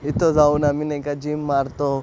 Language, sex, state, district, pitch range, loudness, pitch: Marathi, male, Maharashtra, Aurangabad, 140-150 Hz, -20 LUFS, 145 Hz